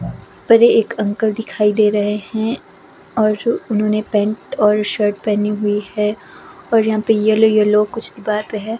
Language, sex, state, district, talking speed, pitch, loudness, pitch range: Hindi, female, Himachal Pradesh, Shimla, 170 wpm, 215 Hz, -16 LUFS, 210-220 Hz